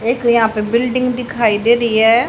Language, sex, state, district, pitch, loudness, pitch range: Hindi, female, Haryana, Charkhi Dadri, 235 Hz, -15 LUFS, 225-245 Hz